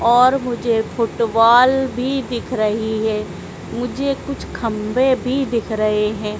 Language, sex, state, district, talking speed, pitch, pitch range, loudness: Hindi, female, Madhya Pradesh, Dhar, 130 wpm, 235 Hz, 220-255 Hz, -18 LUFS